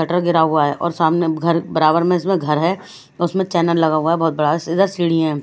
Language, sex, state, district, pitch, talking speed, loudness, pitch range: Hindi, female, Delhi, New Delhi, 165 Hz, 255 wpm, -17 LUFS, 160-175 Hz